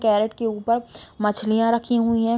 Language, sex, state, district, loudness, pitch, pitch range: Hindi, female, Bihar, Sitamarhi, -22 LUFS, 225 Hz, 215-230 Hz